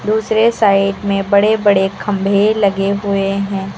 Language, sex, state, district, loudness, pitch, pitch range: Hindi, female, Uttar Pradesh, Lucknow, -14 LUFS, 200 Hz, 195-210 Hz